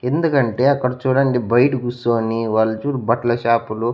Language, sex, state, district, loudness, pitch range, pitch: Telugu, male, Andhra Pradesh, Annamaya, -18 LUFS, 115-130 Hz, 120 Hz